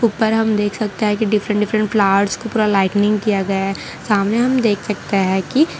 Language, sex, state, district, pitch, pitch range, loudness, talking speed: Hindi, female, Gujarat, Valsad, 210 Hz, 200-220 Hz, -17 LUFS, 230 wpm